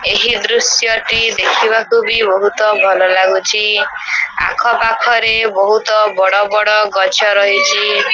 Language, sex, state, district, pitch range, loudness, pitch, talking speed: Odia, female, Odisha, Sambalpur, 195-225 Hz, -12 LUFS, 215 Hz, 110 wpm